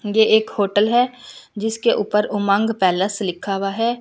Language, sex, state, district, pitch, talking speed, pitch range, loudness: Hindi, female, Delhi, New Delhi, 210 Hz, 165 wpm, 200-225 Hz, -19 LUFS